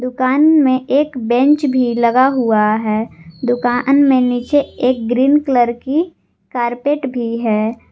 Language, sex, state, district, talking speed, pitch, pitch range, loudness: Hindi, female, Jharkhand, Garhwa, 135 wpm, 250 Hz, 235-275 Hz, -15 LUFS